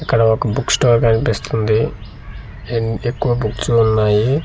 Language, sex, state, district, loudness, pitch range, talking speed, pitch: Telugu, male, Andhra Pradesh, Manyam, -16 LUFS, 110-120 Hz, 120 wpm, 115 Hz